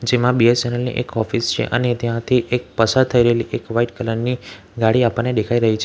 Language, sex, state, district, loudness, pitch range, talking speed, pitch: Gujarati, male, Gujarat, Valsad, -18 LUFS, 115-125 Hz, 215 wpm, 120 Hz